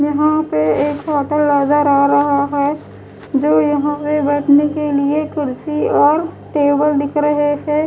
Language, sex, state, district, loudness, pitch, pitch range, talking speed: Hindi, female, Punjab, Pathankot, -15 LUFS, 290 Hz, 285-300 Hz, 145 wpm